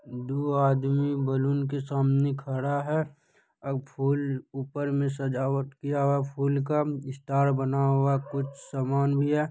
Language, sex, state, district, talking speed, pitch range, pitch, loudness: Hindi, male, Bihar, Purnia, 150 wpm, 135-140 Hz, 140 Hz, -27 LUFS